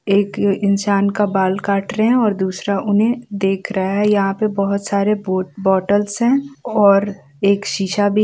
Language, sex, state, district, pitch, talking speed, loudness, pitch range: Hindi, female, Bihar, East Champaran, 200 Hz, 175 wpm, -17 LUFS, 195-210 Hz